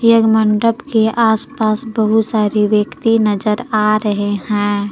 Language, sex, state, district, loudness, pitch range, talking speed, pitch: Hindi, female, Jharkhand, Palamu, -15 LUFS, 210-225 Hz, 135 wpm, 215 Hz